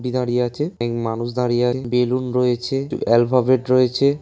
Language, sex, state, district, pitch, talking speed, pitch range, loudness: Bengali, male, West Bengal, Paschim Medinipur, 125 Hz, 155 wpm, 120-130 Hz, -19 LUFS